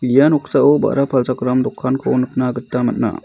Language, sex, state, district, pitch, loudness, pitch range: Garo, male, Meghalaya, South Garo Hills, 130 Hz, -16 LUFS, 125-140 Hz